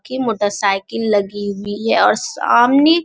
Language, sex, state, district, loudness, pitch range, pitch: Hindi, male, Bihar, Jamui, -16 LUFS, 205-240 Hz, 210 Hz